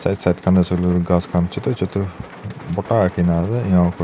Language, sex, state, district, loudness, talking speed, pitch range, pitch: Nagamese, male, Nagaland, Dimapur, -19 LUFS, 165 wpm, 90-100 Hz, 90 Hz